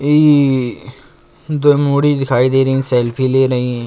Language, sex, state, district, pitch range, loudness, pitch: Hindi, male, Uttar Pradesh, Jalaun, 125-145 Hz, -14 LUFS, 135 Hz